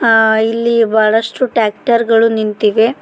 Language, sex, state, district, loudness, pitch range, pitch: Kannada, female, Karnataka, Koppal, -12 LUFS, 220-230 Hz, 225 Hz